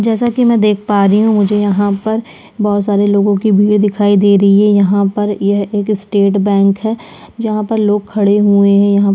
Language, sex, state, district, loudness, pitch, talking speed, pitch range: Hindi, female, Chhattisgarh, Sukma, -12 LUFS, 205 Hz, 215 wpm, 200-210 Hz